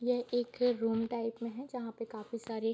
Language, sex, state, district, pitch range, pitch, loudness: Hindi, female, Bihar, Bhagalpur, 225-245 Hz, 230 Hz, -36 LUFS